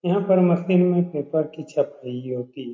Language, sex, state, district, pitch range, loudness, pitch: Hindi, male, Uttar Pradesh, Etah, 135-180 Hz, -22 LUFS, 155 Hz